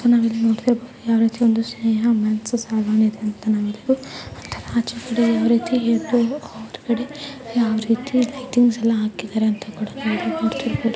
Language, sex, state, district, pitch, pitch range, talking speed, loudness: Kannada, female, Karnataka, Dakshina Kannada, 230 Hz, 220-240 Hz, 125 wpm, -20 LUFS